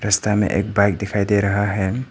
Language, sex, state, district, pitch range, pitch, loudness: Hindi, male, Arunachal Pradesh, Papum Pare, 100-105 Hz, 100 Hz, -19 LUFS